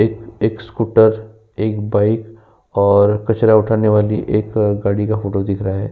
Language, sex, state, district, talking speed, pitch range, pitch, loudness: Hindi, male, Uttar Pradesh, Jyotiba Phule Nagar, 150 wpm, 105-110 Hz, 110 Hz, -16 LUFS